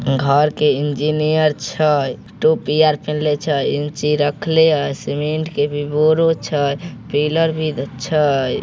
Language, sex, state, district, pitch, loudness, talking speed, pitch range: Maithili, male, Bihar, Samastipur, 150 Hz, -17 LUFS, 130 wpm, 145-155 Hz